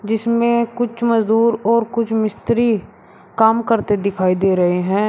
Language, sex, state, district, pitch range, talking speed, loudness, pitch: Hindi, male, Uttar Pradesh, Shamli, 205-235 Hz, 140 wpm, -17 LUFS, 225 Hz